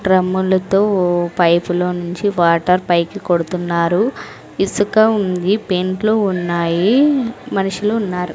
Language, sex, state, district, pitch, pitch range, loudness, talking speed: Telugu, female, Andhra Pradesh, Sri Satya Sai, 185 Hz, 175-205 Hz, -16 LUFS, 85 wpm